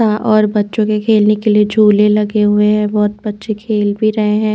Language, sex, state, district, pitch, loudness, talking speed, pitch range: Hindi, female, Chandigarh, Chandigarh, 210 Hz, -13 LUFS, 225 wpm, 210-215 Hz